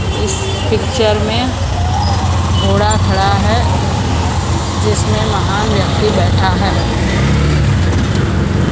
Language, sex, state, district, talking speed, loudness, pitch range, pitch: Hindi, female, Maharashtra, Mumbai Suburban, 75 wpm, -14 LUFS, 95-105 Hz, 95 Hz